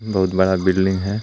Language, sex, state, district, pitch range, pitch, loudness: Hindi, male, Jharkhand, Garhwa, 95-100 Hz, 95 Hz, -18 LUFS